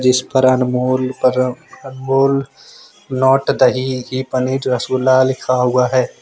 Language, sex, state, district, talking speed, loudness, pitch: Hindi, male, Jharkhand, Ranchi, 125 wpm, -16 LUFS, 130 Hz